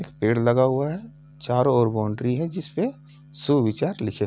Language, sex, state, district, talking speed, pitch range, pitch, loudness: Hindi, male, Uttar Pradesh, Jalaun, 195 wpm, 120-150 Hz, 140 Hz, -23 LUFS